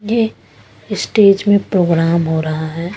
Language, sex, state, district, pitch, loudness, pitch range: Hindi, female, Punjab, Pathankot, 180 Hz, -15 LUFS, 165-205 Hz